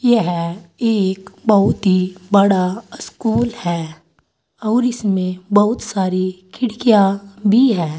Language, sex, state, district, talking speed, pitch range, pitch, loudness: Hindi, female, Uttar Pradesh, Saharanpur, 105 wpm, 185-225 Hz, 200 Hz, -17 LUFS